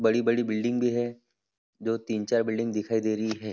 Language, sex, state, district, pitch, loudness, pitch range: Hindi, male, Maharashtra, Nagpur, 115 Hz, -28 LUFS, 110-120 Hz